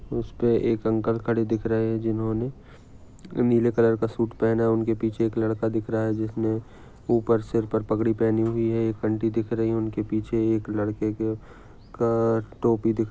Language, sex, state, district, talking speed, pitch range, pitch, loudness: Hindi, male, Maharashtra, Dhule, 180 wpm, 110-115 Hz, 115 Hz, -25 LUFS